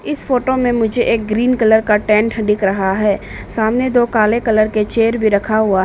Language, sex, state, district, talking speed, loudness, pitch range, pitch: Hindi, female, Arunachal Pradesh, Papum Pare, 215 wpm, -15 LUFS, 210-240 Hz, 220 Hz